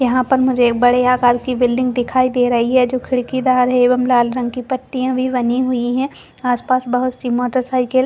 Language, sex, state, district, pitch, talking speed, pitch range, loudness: Hindi, female, Chhattisgarh, Bastar, 250 Hz, 210 wpm, 245-255 Hz, -16 LUFS